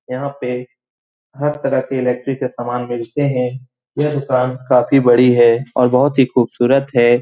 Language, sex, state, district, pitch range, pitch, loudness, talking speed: Hindi, male, Bihar, Supaul, 125-135 Hz, 125 Hz, -16 LUFS, 165 wpm